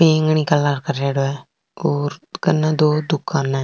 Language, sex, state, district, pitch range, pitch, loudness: Marwari, female, Rajasthan, Nagaur, 140-155 Hz, 150 Hz, -19 LUFS